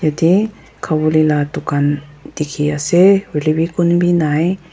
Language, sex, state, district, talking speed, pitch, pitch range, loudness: Nagamese, female, Nagaland, Dimapur, 125 wpm, 155 Hz, 150-175 Hz, -15 LUFS